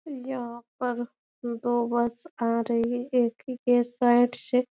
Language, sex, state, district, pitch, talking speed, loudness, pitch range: Hindi, female, Bihar, Bhagalpur, 245 Hz, 165 wpm, -27 LUFS, 235-250 Hz